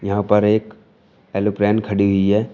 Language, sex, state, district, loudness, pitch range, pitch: Hindi, male, Uttar Pradesh, Shamli, -18 LUFS, 100-105 Hz, 105 Hz